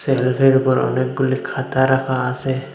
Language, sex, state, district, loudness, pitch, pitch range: Bengali, male, Assam, Hailakandi, -18 LUFS, 130 Hz, 130-135 Hz